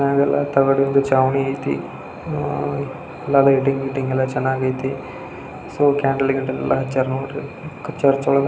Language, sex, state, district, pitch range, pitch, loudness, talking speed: Kannada, male, Karnataka, Belgaum, 130-140 Hz, 135 Hz, -20 LUFS, 140 wpm